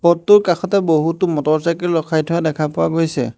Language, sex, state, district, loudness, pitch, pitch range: Assamese, male, Assam, Hailakandi, -16 LUFS, 165 Hz, 155-175 Hz